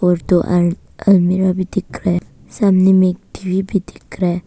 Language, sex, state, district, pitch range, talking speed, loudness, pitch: Hindi, female, Arunachal Pradesh, Papum Pare, 180-190 Hz, 190 wpm, -16 LUFS, 185 Hz